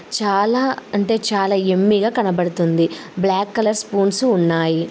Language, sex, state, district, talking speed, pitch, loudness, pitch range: Telugu, female, Andhra Pradesh, Srikakulam, 110 wpm, 195 Hz, -18 LUFS, 180-215 Hz